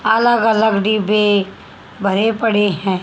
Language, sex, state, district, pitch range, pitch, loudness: Hindi, female, Haryana, Charkhi Dadri, 200-220 Hz, 210 Hz, -15 LUFS